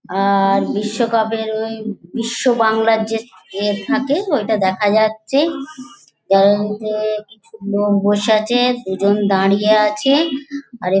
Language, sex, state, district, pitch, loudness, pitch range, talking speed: Bengali, female, West Bengal, Dakshin Dinajpur, 220 Hz, -17 LUFS, 205-235 Hz, 110 wpm